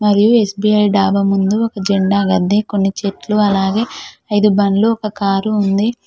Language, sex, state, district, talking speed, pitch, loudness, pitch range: Telugu, female, Telangana, Mahabubabad, 150 wpm, 205 Hz, -15 LUFS, 195-210 Hz